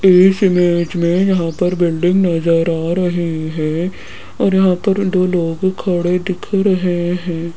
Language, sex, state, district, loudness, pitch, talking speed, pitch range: Hindi, female, Rajasthan, Jaipur, -15 LUFS, 175 Hz, 150 wpm, 165-185 Hz